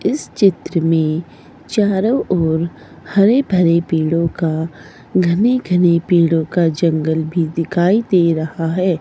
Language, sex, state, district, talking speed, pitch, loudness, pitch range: Hindi, female, Himachal Pradesh, Shimla, 125 wpm, 170 Hz, -16 LUFS, 165-185 Hz